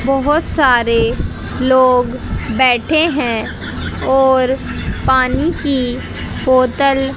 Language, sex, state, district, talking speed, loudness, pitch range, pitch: Hindi, female, Haryana, Jhajjar, 75 wpm, -15 LUFS, 250-275 Hz, 260 Hz